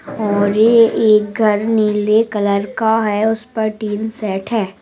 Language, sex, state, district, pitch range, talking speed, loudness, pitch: Hindi, female, Bihar, Saharsa, 210-225 Hz, 160 wpm, -15 LUFS, 215 Hz